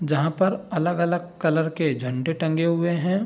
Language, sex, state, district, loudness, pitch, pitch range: Hindi, male, Bihar, Saharsa, -23 LUFS, 170 Hz, 160-175 Hz